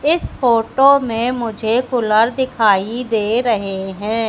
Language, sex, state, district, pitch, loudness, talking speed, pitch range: Hindi, female, Madhya Pradesh, Katni, 230 Hz, -16 LUFS, 125 wpm, 220-250 Hz